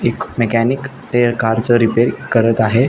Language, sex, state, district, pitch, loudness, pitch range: Marathi, male, Maharashtra, Nagpur, 120 Hz, -15 LUFS, 115-120 Hz